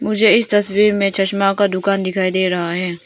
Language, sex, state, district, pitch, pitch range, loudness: Hindi, female, Arunachal Pradesh, Papum Pare, 195 Hz, 185-205 Hz, -16 LUFS